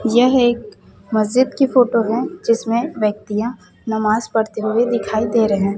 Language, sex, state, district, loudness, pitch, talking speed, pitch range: Hindi, female, Chhattisgarh, Raipur, -18 LUFS, 225 Hz, 155 wpm, 215-240 Hz